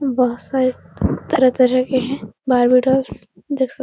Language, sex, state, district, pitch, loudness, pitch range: Hindi, female, Bihar, Supaul, 260 Hz, -18 LUFS, 255-265 Hz